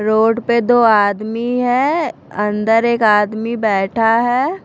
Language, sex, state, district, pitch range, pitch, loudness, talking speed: Hindi, female, Punjab, Fazilka, 215-240 Hz, 225 Hz, -15 LUFS, 130 wpm